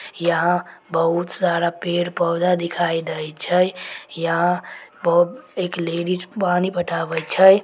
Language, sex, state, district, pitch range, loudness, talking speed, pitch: Maithili, female, Bihar, Samastipur, 170-180 Hz, -21 LUFS, 110 wpm, 175 Hz